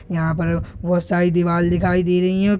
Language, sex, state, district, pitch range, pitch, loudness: Hindi, male, Bihar, Purnia, 170-180 Hz, 175 Hz, -19 LUFS